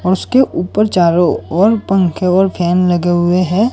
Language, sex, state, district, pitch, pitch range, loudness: Hindi, male, Gujarat, Gandhinagar, 180 Hz, 175-195 Hz, -13 LUFS